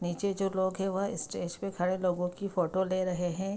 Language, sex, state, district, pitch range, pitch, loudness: Hindi, female, Bihar, Begusarai, 180-195 Hz, 185 Hz, -32 LUFS